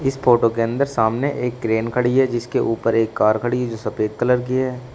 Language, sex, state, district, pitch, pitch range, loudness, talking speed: Hindi, male, Uttar Pradesh, Shamli, 120 Hz, 115-125 Hz, -20 LUFS, 240 wpm